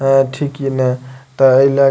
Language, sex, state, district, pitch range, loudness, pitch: Maithili, male, Bihar, Madhepura, 130-135 Hz, -14 LUFS, 135 Hz